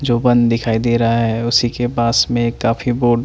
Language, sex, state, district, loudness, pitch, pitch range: Hindi, male, Chandigarh, Chandigarh, -16 LUFS, 120 Hz, 115-120 Hz